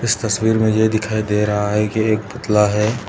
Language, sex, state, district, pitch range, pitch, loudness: Hindi, male, Uttar Pradesh, Etah, 105-110 Hz, 110 Hz, -17 LUFS